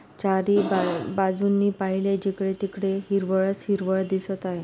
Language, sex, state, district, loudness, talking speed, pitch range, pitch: Marathi, female, Maharashtra, Solapur, -25 LUFS, 130 wpm, 190-195 Hz, 195 Hz